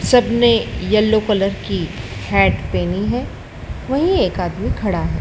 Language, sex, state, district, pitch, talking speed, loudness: Hindi, male, Madhya Pradesh, Dhar, 215 Hz, 140 wpm, -18 LUFS